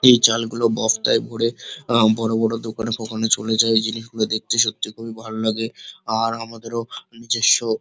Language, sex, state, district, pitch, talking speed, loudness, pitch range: Bengali, male, West Bengal, Kolkata, 115 Hz, 155 wpm, -20 LUFS, 110-115 Hz